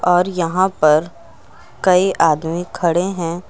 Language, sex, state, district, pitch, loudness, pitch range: Hindi, female, Uttar Pradesh, Lucknow, 170 Hz, -17 LUFS, 160-180 Hz